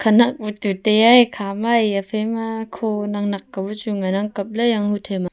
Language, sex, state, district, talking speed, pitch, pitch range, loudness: Wancho, female, Arunachal Pradesh, Longding, 190 wpm, 210 Hz, 200-225 Hz, -19 LUFS